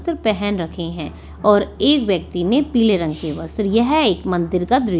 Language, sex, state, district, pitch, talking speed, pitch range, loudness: Hindi, female, Delhi, New Delhi, 205 Hz, 215 wpm, 175-235 Hz, -18 LUFS